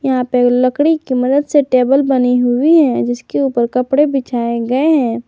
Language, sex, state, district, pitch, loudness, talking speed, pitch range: Hindi, female, Jharkhand, Garhwa, 255 Hz, -14 LUFS, 195 wpm, 245-280 Hz